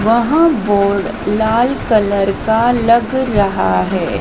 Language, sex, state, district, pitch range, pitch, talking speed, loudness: Hindi, female, Madhya Pradesh, Dhar, 200-240 Hz, 220 Hz, 115 wpm, -14 LUFS